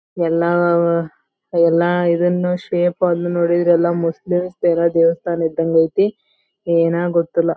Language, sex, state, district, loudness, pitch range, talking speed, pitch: Kannada, female, Karnataka, Belgaum, -17 LUFS, 170-175 Hz, 110 wpm, 170 Hz